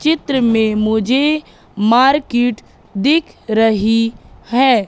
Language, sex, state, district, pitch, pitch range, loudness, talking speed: Hindi, female, Madhya Pradesh, Katni, 240 Hz, 220-275 Hz, -15 LUFS, 85 wpm